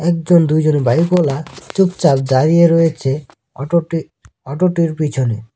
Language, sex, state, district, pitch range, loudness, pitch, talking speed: Bengali, male, West Bengal, Cooch Behar, 140-170 Hz, -15 LUFS, 160 Hz, 110 wpm